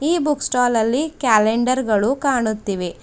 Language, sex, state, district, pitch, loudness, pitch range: Kannada, female, Karnataka, Bidar, 245 Hz, -19 LUFS, 220-280 Hz